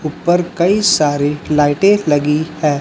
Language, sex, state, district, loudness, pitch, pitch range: Hindi, male, Chhattisgarh, Raipur, -14 LUFS, 155 Hz, 150-175 Hz